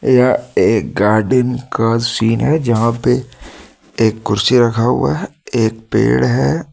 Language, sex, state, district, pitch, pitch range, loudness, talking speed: Hindi, male, Jharkhand, Deoghar, 115 Hz, 115-125 Hz, -15 LUFS, 145 wpm